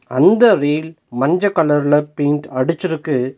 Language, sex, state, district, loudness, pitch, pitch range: Tamil, male, Tamil Nadu, Nilgiris, -16 LUFS, 150 Hz, 145-170 Hz